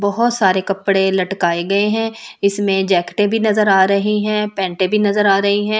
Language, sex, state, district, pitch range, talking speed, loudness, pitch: Hindi, female, Delhi, New Delhi, 190-210 Hz, 195 wpm, -16 LUFS, 200 Hz